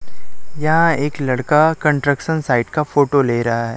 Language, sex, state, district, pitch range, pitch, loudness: Hindi, male, Chhattisgarh, Raipur, 120-155 Hz, 145 Hz, -17 LUFS